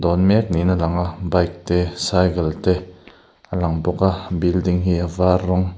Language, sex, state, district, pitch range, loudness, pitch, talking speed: Mizo, male, Mizoram, Aizawl, 85-90 Hz, -19 LUFS, 90 Hz, 195 wpm